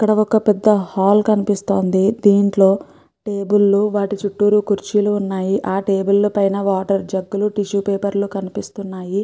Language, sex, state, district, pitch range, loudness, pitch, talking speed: Telugu, female, Andhra Pradesh, Guntur, 195-205 Hz, -17 LUFS, 200 Hz, 135 wpm